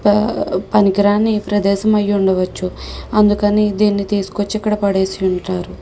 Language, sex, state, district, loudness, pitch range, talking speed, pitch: Telugu, female, Andhra Pradesh, Krishna, -16 LUFS, 190-210 Hz, 115 wpm, 205 Hz